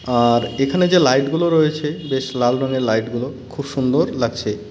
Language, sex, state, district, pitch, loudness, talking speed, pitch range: Bengali, male, West Bengal, Cooch Behar, 130 Hz, -18 LUFS, 155 wpm, 120-150 Hz